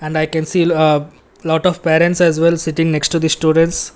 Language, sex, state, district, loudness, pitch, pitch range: English, male, Karnataka, Bangalore, -15 LUFS, 160 Hz, 155-170 Hz